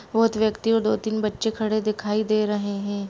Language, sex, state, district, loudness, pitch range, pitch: Hindi, female, Bihar, Jahanabad, -23 LUFS, 210-220 Hz, 215 Hz